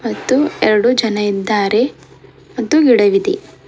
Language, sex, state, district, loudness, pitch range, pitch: Kannada, female, Karnataka, Bidar, -14 LUFS, 210-250 Hz, 225 Hz